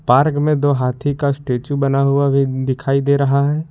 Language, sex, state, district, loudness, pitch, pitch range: Hindi, male, Jharkhand, Ranchi, -17 LUFS, 140 Hz, 135-145 Hz